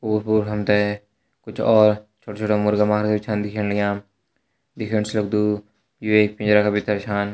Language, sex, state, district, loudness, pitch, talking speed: Hindi, male, Uttarakhand, Tehri Garhwal, -21 LUFS, 105 Hz, 180 wpm